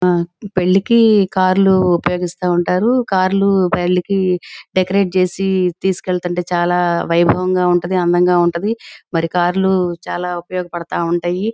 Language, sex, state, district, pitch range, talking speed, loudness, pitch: Telugu, female, Andhra Pradesh, Guntur, 175-190 Hz, 105 wpm, -16 LUFS, 180 Hz